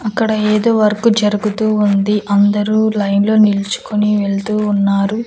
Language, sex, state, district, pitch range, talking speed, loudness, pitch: Telugu, female, Andhra Pradesh, Annamaya, 205-215 Hz, 125 wpm, -14 LUFS, 210 Hz